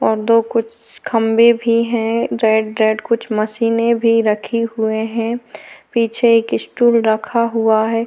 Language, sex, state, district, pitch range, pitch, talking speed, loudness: Hindi, female, Maharashtra, Chandrapur, 220-230 Hz, 230 Hz, 150 wpm, -16 LUFS